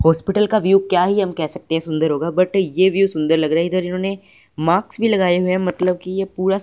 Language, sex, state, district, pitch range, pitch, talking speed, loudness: Hindi, male, Punjab, Fazilka, 165-195 Hz, 185 Hz, 255 wpm, -18 LUFS